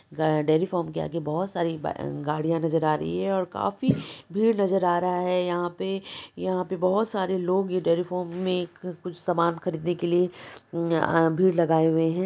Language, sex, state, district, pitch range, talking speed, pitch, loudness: Maithili, male, Bihar, Supaul, 165-185 Hz, 200 wpm, 175 Hz, -26 LUFS